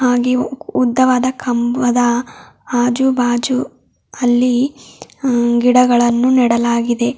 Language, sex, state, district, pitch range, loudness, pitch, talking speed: Kannada, female, Karnataka, Bidar, 240-255 Hz, -15 LUFS, 245 Hz, 75 wpm